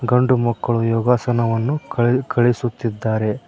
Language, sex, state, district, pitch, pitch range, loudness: Kannada, male, Karnataka, Koppal, 120 Hz, 115-125 Hz, -19 LUFS